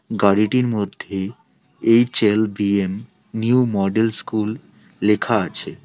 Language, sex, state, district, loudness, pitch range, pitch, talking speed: Bengali, male, West Bengal, Alipurduar, -19 LUFS, 100-115 Hz, 105 Hz, 80 wpm